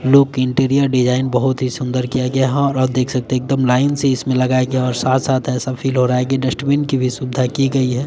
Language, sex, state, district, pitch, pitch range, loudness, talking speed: Hindi, male, Bihar, West Champaran, 130 Hz, 125-135 Hz, -17 LUFS, 260 wpm